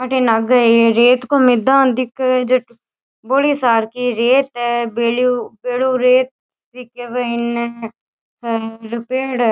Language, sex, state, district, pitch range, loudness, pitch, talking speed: Rajasthani, female, Rajasthan, Churu, 235-255 Hz, -16 LUFS, 245 Hz, 140 wpm